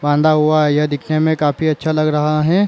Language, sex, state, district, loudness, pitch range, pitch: Chhattisgarhi, male, Chhattisgarh, Raigarh, -15 LUFS, 150-155 Hz, 155 Hz